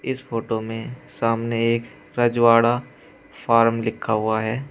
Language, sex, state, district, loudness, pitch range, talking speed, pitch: Hindi, male, Uttar Pradesh, Shamli, -21 LUFS, 110-120 Hz, 130 wpm, 115 Hz